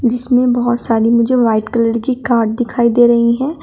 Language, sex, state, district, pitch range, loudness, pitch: Hindi, female, Uttar Pradesh, Shamli, 230-250 Hz, -14 LUFS, 240 Hz